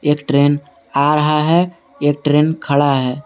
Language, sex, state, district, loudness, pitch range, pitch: Hindi, male, Jharkhand, Garhwa, -16 LUFS, 145-150 Hz, 145 Hz